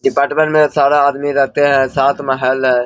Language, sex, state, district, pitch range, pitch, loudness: Hindi, male, Bihar, Bhagalpur, 135-145 Hz, 140 Hz, -13 LUFS